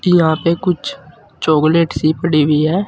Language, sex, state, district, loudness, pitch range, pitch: Hindi, male, Uttar Pradesh, Saharanpur, -15 LUFS, 155-170 Hz, 160 Hz